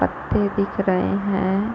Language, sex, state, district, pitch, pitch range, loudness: Hindi, female, Chhattisgarh, Korba, 200 Hz, 190-200 Hz, -22 LUFS